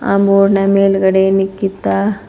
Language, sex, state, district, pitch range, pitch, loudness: Kannada, female, Karnataka, Bidar, 190-195 Hz, 195 Hz, -13 LUFS